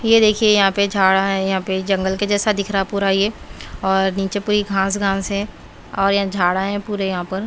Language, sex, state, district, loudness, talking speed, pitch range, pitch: Hindi, female, Bihar, Katihar, -18 LUFS, 225 wpm, 190-205 Hz, 195 Hz